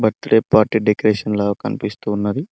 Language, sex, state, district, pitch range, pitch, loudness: Telugu, male, Telangana, Mahabubabad, 105-110 Hz, 110 Hz, -18 LUFS